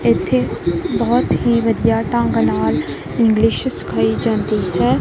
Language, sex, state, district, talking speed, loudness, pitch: Punjabi, female, Punjab, Kapurthala, 120 wpm, -17 LUFS, 215 Hz